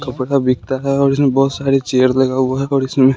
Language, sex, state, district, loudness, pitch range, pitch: Hindi, male, Bihar, West Champaran, -15 LUFS, 130-140 Hz, 135 Hz